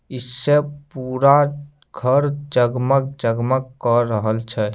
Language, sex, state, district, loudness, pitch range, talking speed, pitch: Maithili, male, Bihar, Samastipur, -19 LUFS, 120-145 Hz, 90 wpm, 130 Hz